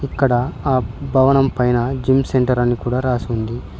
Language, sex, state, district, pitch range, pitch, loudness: Telugu, male, Telangana, Mahabubabad, 120-135 Hz, 125 Hz, -18 LUFS